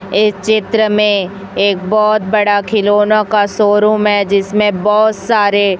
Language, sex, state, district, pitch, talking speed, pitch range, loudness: Hindi, female, Chhattisgarh, Raipur, 210 Hz, 135 wpm, 200-215 Hz, -12 LUFS